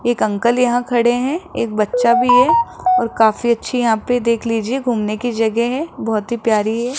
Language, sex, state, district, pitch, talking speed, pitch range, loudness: Hindi, male, Rajasthan, Jaipur, 235 Hz, 205 wpm, 225-245 Hz, -17 LUFS